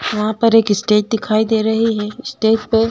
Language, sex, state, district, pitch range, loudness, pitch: Hindi, female, Uttar Pradesh, Budaun, 210-225 Hz, -16 LUFS, 220 Hz